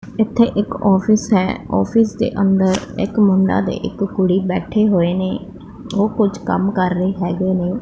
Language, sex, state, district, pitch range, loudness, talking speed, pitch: Punjabi, female, Punjab, Pathankot, 185-215 Hz, -17 LUFS, 170 wpm, 195 Hz